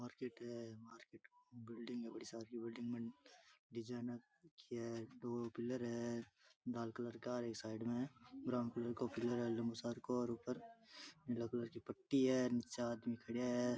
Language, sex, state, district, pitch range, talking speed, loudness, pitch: Rajasthani, male, Rajasthan, Churu, 115-125 Hz, 180 wpm, -45 LUFS, 120 Hz